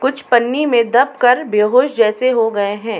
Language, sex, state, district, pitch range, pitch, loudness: Hindi, female, Uttar Pradesh, Muzaffarnagar, 225-255 Hz, 240 Hz, -14 LUFS